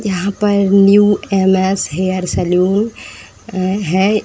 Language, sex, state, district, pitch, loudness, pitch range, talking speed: Hindi, female, Uttar Pradesh, Etah, 195 Hz, -14 LUFS, 185-205 Hz, 115 wpm